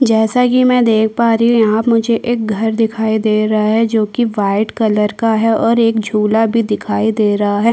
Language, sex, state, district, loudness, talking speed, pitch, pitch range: Hindi, female, Chhattisgarh, Korba, -14 LUFS, 225 wpm, 225 Hz, 215-230 Hz